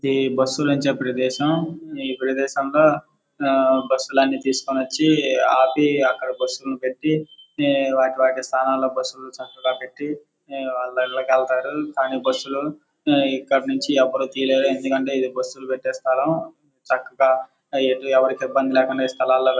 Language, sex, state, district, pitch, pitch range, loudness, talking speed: Telugu, male, Andhra Pradesh, Guntur, 135 Hz, 130-140 Hz, -21 LUFS, 135 wpm